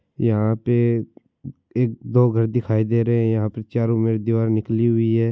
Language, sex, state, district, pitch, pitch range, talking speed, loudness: Marwari, male, Rajasthan, Churu, 115 Hz, 110-115 Hz, 170 wpm, -20 LUFS